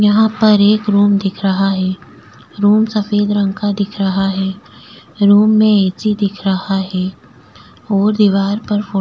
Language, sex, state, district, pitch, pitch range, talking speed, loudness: Hindi, female, Goa, North and South Goa, 200 Hz, 195-210 Hz, 165 wpm, -14 LUFS